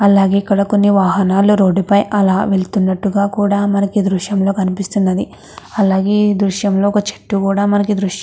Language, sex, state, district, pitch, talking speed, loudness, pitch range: Telugu, female, Andhra Pradesh, Krishna, 200 Hz, 155 wpm, -14 LUFS, 195-205 Hz